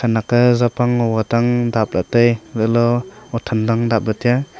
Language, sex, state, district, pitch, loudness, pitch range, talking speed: Wancho, male, Arunachal Pradesh, Longding, 120 Hz, -17 LUFS, 115-120 Hz, 170 wpm